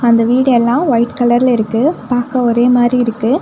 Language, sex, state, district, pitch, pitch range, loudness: Tamil, female, Tamil Nadu, Nilgiris, 245 Hz, 235-250 Hz, -13 LUFS